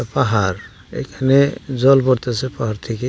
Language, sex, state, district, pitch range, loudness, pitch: Bengali, male, West Bengal, Jalpaiguri, 115-135 Hz, -17 LUFS, 130 Hz